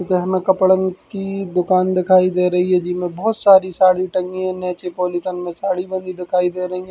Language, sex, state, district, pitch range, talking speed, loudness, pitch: Bundeli, male, Uttar Pradesh, Hamirpur, 180-185 Hz, 210 wpm, -18 LUFS, 185 Hz